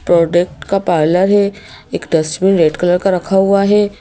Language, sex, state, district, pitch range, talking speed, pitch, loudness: Hindi, female, Madhya Pradesh, Bhopal, 170-195 Hz, 180 wpm, 185 Hz, -13 LUFS